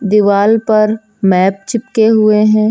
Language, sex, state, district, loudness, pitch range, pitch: Hindi, female, Uttar Pradesh, Lucknow, -12 LUFS, 200-220 Hz, 215 Hz